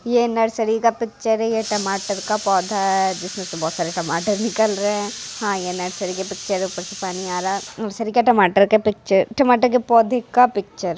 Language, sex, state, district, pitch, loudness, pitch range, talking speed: Hindi, female, Bihar, Muzaffarpur, 205 Hz, -20 LUFS, 190-225 Hz, 225 wpm